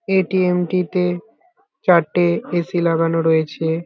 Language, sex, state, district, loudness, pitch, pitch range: Bengali, male, West Bengal, Kolkata, -18 LUFS, 175 Hz, 165-190 Hz